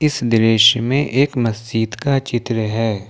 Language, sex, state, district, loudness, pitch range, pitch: Hindi, male, Jharkhand, Ranchi, -17 LUFS, 115-135 Hz, 115 Hz